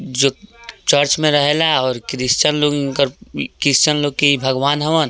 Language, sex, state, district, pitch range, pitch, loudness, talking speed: Hindi, male, Bihar, East Champaran, 135-150 Hz, 145 Hz, -16 LUFS, 150 wpm